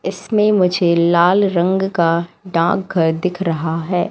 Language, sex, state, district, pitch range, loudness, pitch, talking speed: Hindi, female, Madhya Pradesh, Katni, 170-190 Hz, -16 LUFS, 175 Hz, 145 wpm